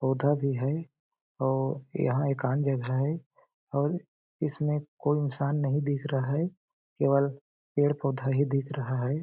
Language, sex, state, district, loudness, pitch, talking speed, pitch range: Hindi, male, Chhattisgarh, Balrampur, -29 LUFS, 140 Hz, 145 wpm, 135-150 Hz